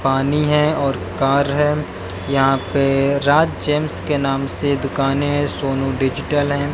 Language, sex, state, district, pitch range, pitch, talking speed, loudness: Hindi, male, Haryana, Jhajjar, 135-145 Hz, 140 Hz, 150 wpm, -18 LUFS